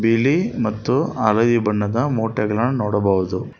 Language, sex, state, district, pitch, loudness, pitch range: Kannada, male, Karnataka, Bangalore, 115 Hz, -19 LUFS, 105-125 Hz